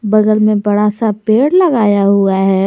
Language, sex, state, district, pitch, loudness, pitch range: Hindi, female, Jharkhand, Garhwa, 210 Hz, -12 LUFS, 200-220 Hz